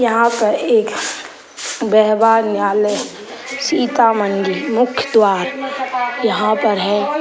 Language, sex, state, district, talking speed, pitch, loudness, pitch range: Hindi, male, Bihar, Sitamarhi, 110 wpm, 225 Hz, -16 LUFS, 210-250 Hz